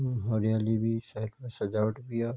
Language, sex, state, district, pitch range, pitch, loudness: Garhwali, male, Uttarakhand, Tehri Garhwal, 110-120 Hz, 110 Hz, -31 LUFS